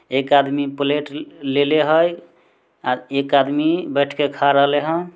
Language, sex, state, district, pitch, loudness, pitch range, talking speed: Maithili, male, Bihar, Samastipur, 145 Hz, -18 LUFS, 140-150 Hz, 150 wpm